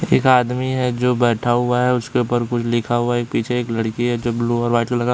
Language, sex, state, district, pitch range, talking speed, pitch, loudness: Hindi, male, Chhattisgarh, Bilaspur, 120-125 Hz, 270 wpm, 120 Hz, -19 LUFS